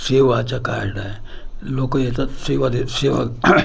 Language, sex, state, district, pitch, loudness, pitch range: Marathi, male, Maharashtra, Gondia, 130 Hz, -20 LUFS, 120-135 Hz